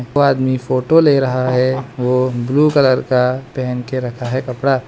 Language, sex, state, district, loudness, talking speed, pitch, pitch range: Hindi, male, Arunachal Pradesh, Lower Dibang Valley, -16 LUFS, 185 wpm, 130 Hz, 125-135 Hz